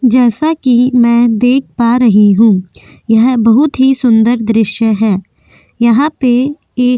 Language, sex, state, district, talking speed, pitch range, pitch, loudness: Hindi, female, Goa, North and South Goa, 145 wpm, 225-255 Hz, 240 Hz, -10 LUFS